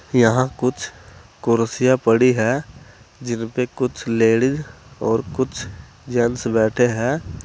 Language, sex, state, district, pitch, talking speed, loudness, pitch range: Hindi, male, Uttar Pradesh, Saharanpur, 120 Hz, 105 wpm, -20 LUFS, 115-125 Hz